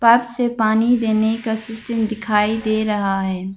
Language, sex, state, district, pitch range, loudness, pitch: Hindi, female, Arunachal Pradesh, Lower Dibang Valley, 210-230 Hz, -19 LUFS, 220 Hz